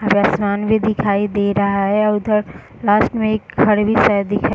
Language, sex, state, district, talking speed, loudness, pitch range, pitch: Hindi, female, Bihar, Darbhanga, 225 wpm, -16 LUFS, 205-215 Hz, 210 Hz